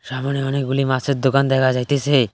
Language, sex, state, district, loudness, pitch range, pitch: Bengali, male, West Bengal, Cooch Behar, -19 LUFS, 130-140 Hz, 135 Hz